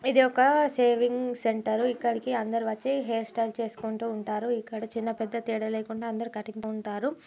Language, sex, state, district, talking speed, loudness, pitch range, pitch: Telugu, female, Telangana, Nalgonda, 155 wpm, -28 LUFS, 220-245 Hz, 230 Hz